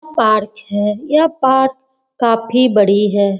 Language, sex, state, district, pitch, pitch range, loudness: Hindi, female, Bihar, Jamui, 230 Hz, 210-265 Hz, -14 LUFS